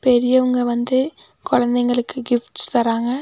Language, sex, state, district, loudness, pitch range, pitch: Tamil, female, Tamil Nadu, Nilgiris, -18 LUFS, 240-255 Hz, 245 Hz